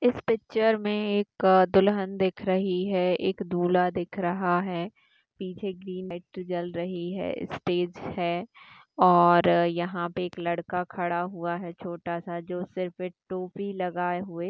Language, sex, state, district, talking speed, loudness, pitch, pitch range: Hindi, female, Chhattisgarh, Sarguja, 155 wpm, -27 LUFS, 180 Hz, 175-190 Hz